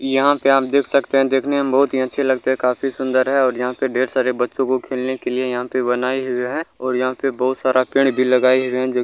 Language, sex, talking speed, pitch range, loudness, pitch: Maithili, male, 260 wpm, 125-135 Hz, -18 LUFS, 130 Hz